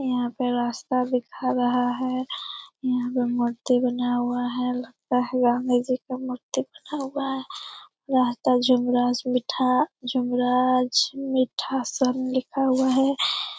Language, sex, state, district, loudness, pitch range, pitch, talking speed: Hindi, female, Bihar, Lakhisarai, -24 LUFS, 245-265 Hz, 255 Hz, 125 wpm